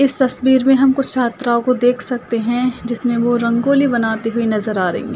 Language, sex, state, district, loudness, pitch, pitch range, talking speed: Hindi, female, Uttar Pradesh, Budaun, -16 LUFS, 245 Hz, 235-260 Hz, 220 wpm